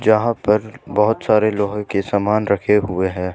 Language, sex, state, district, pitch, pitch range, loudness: Hindi, male, Jharkhand, Ranchi, 105 Hz, 100-110 Hz, -18 LUFS